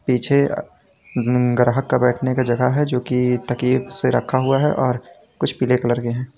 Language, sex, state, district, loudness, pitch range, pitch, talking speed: Hindi, male, Uttar Pradesh, Lalitpur, -19 LUFS, 125-130 Hz, 125 Hz, 190 wpm